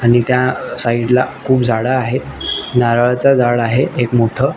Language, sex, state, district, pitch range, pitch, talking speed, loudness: Marathi, male, Maharashtra, Nagpur, 120-130 Hz, 125 Hz, 170 wpm, -15 LUFS